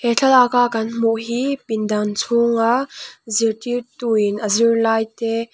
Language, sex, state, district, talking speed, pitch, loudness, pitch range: Mizo, female, Mizoram, Aizawl, 120 wpm, 230 Hz, -18 LUFS, 225-245 Hz